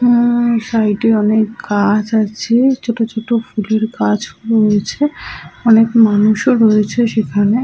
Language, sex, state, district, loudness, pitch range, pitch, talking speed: Bengali, female, West Bengal, Jhargram, -14 LUFS, 215-235 Hz, 220 Hz, 120 wpm